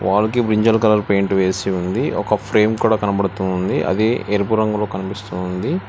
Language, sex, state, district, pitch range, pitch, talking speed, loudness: Telugu, male, Telangana, Hyderabad, 95-110 Hz, 100 Hz, 165 wpm, -18 LUFS